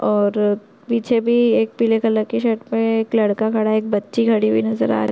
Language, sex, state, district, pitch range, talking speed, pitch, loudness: Hindi, female, Chhattisgarh, Korba, 205-230 Hz, 235 wpm, 220 Hz, -18 LUFS